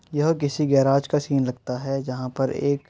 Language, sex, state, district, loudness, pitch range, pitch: Hindi, male, Uttar Pradesh, Muzaffarnagar, -23 LUFS, 135-145 Hz, 135 Hz